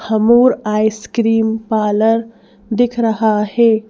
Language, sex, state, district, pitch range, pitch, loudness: Hindi, female, Madhya Pradesh, Bhopal, 215-230 Hz, 225 Hz, -15 LUFS